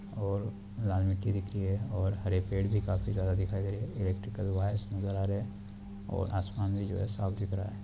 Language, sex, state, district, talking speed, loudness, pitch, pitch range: Hindi, male, Uttar Pradesh, Deoria, 235 wpm, -33 LUFS, 100 Hz, 95-100 Hz